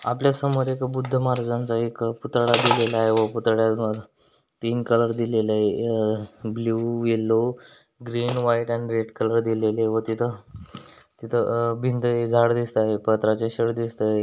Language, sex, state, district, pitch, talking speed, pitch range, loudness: Marathi, male, Maharashtra, Dhule, 115 Hz, 145 wpm, 110-120 Hz, -23 LUFS